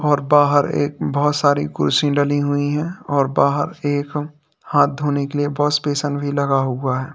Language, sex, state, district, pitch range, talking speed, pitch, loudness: Hindi, male, Uttar Pradesh, Lalitpur, 140-145 Hz, 185 wpm, 145 Hz, -19 LUFS